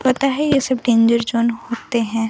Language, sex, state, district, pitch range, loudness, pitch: Hindi, female, Bihar, Vaishali, 230-260 Hz, -18 LUFS, 235 Hz